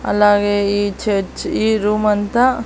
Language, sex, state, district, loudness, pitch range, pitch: Telugu, female, Andhra Pradesh, Annamaya, -16 LUFS, 205-220 Hz, 205 Hz